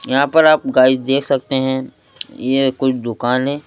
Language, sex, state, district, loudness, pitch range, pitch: Hindi, male, Madhya Pradesh, Bhopal, -16 LUFS, 130-140 Hz, 130 Hz